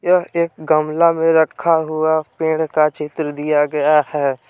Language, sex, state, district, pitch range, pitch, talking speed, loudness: Hindi, male, Jharkhand, Palamu, 150-165 Hz, 155 Hz, 160 wpm, -17 LUFS